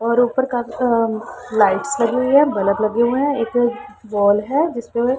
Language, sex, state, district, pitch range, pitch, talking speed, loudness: Hindi, female, Punjab, Pathankot, 220-250 Hz, 240 Hz, 185 wpm, -18 LUFS